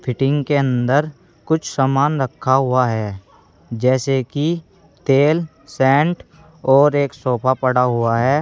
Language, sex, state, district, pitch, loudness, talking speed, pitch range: Hindi, male, Uttar Pradesh, Saharanpur, 135 Hz, -18 LUFS, 130 wpm, 130-145 Hz